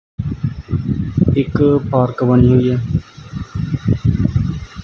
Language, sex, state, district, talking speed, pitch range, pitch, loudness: Punjabi, male, Punjab, Kapurthala, 60 wpm, 125-130 Hz, 125 Hz, -16 LUFS